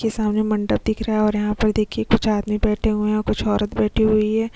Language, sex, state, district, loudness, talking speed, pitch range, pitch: Hindi, female, Chhattisgarh, Kabirdham, -20 LUFS, 275 wpm, 210-220 Hz, 215 Hz